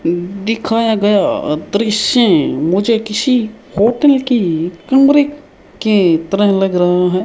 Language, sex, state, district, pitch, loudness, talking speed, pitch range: Hindi, male, Rajasthan, Bikaner, 210 Hz, -14 LUFS, 105 wpm, 180-235 Hz